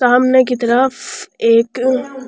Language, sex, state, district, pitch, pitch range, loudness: Rajasthani, female, Rajasthan, Churu, 250 Hz, 240-260 Hz, -14 LUFS